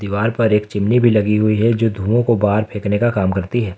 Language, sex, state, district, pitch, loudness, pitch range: Hindi, male, Jharkhand, Ranchi, 105 Hz, -16 LUFS, 105-115 Hz